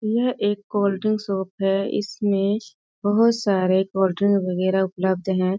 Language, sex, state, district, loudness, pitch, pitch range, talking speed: Hindi, female, Bihar, Sitamarhi, -22 LUFS, 195 Hz, 190-205 Hz, 130 wpm